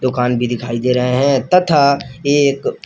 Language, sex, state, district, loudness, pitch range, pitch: Hindi, male, Jharkhand, Palamu, -15 LUFS, 125-140 Hz, 130 Hz